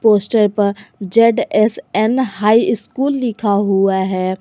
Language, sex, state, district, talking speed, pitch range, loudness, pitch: Hindi, female, Jharkhand, Garhwa, 110 wpm, 200-230 Hz, -15 LUFS, 210 Hz